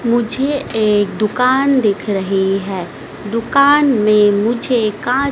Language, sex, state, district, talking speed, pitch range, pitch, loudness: Hindi, female, Madhya Pradesh, Dhar, 115 wpm, 205-260 Hz, 220 Hz, -15 LUFS